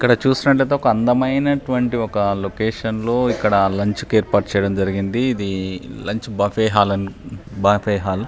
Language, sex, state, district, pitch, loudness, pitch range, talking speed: Telugu, male, Telangana, Nalgonda, 105 Hz, -19 LUFS, 100-125 Hz, 150 wpm